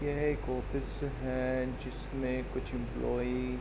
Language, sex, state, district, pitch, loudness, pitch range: Hindi, male, Uttar Pradesh, Jalaun, 130 Hz, -35 LUFS, 125-135 Hz